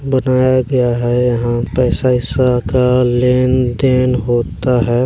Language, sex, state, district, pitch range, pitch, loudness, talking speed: Hindi, male, Chhattisgarh, Balrampur, 120-130 Hz, 125 Hz, -14 LUFS, 140 wpm